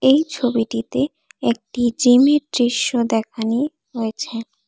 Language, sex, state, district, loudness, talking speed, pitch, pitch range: Bengali, female, Assam, Kamrup Metropolitan, -19 LUFS, 90 wpm, 245 Hz, 230-285 Hz